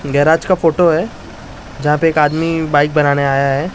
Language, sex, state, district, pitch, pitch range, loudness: Hindi, male, Maharashtra, Mumbai Suburban, 150 Hz, 145-165 Hz, -14 LUFS